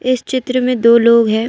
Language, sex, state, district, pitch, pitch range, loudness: Hindi, female, Assam, Kamrup Metropolitan, 235 Hz, 230-255 Hz, -13 LUFS